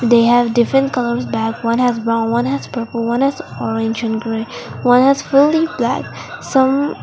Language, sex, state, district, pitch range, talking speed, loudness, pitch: English, female, Mizoram, Aizawl, 230-270 Hz, 180 wpm, -16 LUFS, 240 Hz